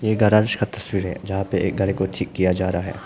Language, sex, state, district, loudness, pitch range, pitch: Hindi, male, Arunachal Pradesh, Papum Pare, -21 LUFS, 90-105 Hz, 95 Hz